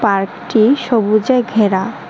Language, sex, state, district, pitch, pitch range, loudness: Bengali, male, Tripura, West Tripura, 220 Hz, 210-245 Hz, -14 LUFS